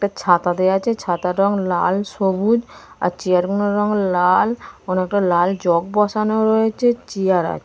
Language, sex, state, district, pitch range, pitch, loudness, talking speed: Bengali, female, West Bengal, Dakshin Dinajpur, 180-210 Hz, 195 Hz, -18 LUFS, 165 wpm